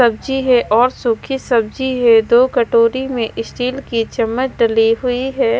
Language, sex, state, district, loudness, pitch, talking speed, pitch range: Hindi, female, Himachal Pradesh, Shimla, -15 LUFS, 245 Hz, 160 wpm, 230-260 Hz